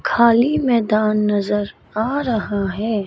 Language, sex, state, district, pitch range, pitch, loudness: Hindi, female, Chandigarh, Chandigarh, 205-235 Hz, 215 Hz, -18 LUFS